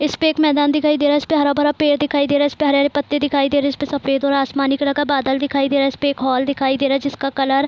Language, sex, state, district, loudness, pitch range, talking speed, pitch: Hindi, female, Bihar, Kishanganj, -17 LUFS, 275-290 Hz, 345 wpm, 285 Hz